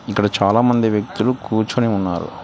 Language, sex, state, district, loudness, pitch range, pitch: Telugu, male, Telangana, Hyderabad, -18 LUFS, 100-120 Hz, 110 Hz